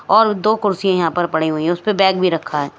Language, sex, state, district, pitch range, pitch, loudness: Hindi, female, Himachal Pradesh, Shimla, 160-205 Hz, 180 Hz, -17 LUFS